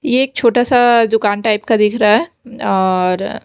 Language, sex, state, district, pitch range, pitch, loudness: Hindi, female, Bihar, West Champaran, 210-245 Hz, 225 Hz, -14 LUFS